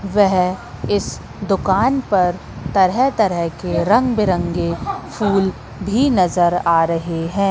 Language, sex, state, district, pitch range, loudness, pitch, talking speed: Hindi, female, Madhya Pradesh, Katni, 170-200 Hz, -18 LUFS, 185 Hz, 120 wpm